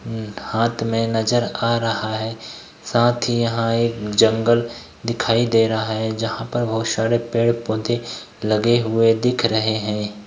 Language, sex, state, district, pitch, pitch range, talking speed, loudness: Hindi, male, Bihar, Begusarai, 115 Hz, 110-120 Hz, 145 wpm, -20 LUFS